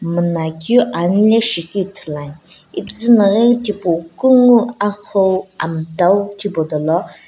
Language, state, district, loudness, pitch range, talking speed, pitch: Sumi, Nagaland, Dimapur, -14 LUFS, 165-210 Hz, 100 wpm, 190 Hz